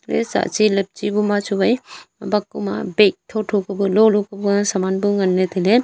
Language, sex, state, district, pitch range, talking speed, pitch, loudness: Wancho, female, Arunachal Pradesh, Longding, 195-210 Hz, 205 wpm, 205 Hz, -19 LUFS